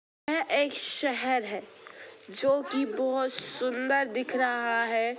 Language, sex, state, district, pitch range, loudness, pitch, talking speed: Bhojpuri, female, Bihar, Gopalganj, 240-275 Hz, -28 LUFS, 255 Hz, 125 wpm